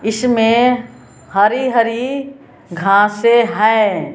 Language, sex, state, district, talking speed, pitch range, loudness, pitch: Hindi, female, Bihar, West Champaran, 70 wpm, 205-245 Hz, -14 LUFS, 230 Hz